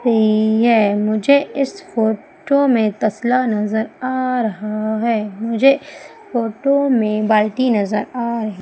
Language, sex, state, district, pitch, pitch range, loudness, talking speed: Hindi, female, Madhya Pradesh, Umaria, 225 Hz, 215-255 Hz, -17 LUFS, 125 wpm